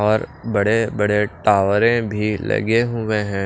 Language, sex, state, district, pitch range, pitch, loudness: Hindi, male, Maharashtra, Washim, 105-115 Hz, 105 Hz, -19 LUFS